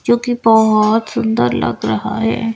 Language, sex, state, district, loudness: Hindi, female, Bihar, Patna, -15 LUFS